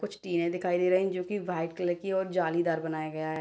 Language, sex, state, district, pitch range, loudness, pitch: Hindi, female, Bihar, Sitamarhi, 165-185 Hz, -30 LUFS, 175 Hz